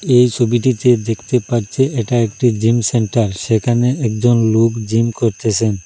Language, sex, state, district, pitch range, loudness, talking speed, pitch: Bengali, male, Assam, Hailakandi, 115-125 Hz, -15 LUFS, 135 wpm, 115 Hz